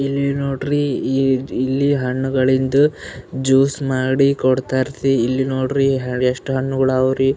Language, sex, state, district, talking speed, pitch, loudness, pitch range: Kannada, male, Karnataka, Gulbarga, 105 wpm, 135 Hz, -18 LUFS, 130-135 Hz